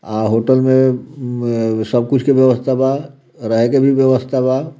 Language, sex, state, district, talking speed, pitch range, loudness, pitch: Bhojpuri, male, Bihar, Muzaffarpur, 175 wpm, 120-135 Hz, -15 LUFS, 130 Hz